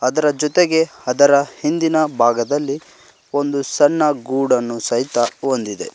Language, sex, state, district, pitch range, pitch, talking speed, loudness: Kannada, male, Karnataka, Koppal, 125-150 Hz, 140 Hz, 100 wpm, -17 LUFS